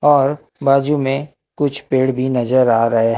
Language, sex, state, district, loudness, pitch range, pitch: Hindi, male, Maharashtra, Gondia, -16 LUFS, 125-145 Hz, 135 Hz